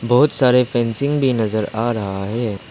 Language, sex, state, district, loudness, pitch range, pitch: Hindi, male, Arunachal Pradesh, Lower Dibang Valley, -18 LUFS, 110-125 Hz, 120 Hz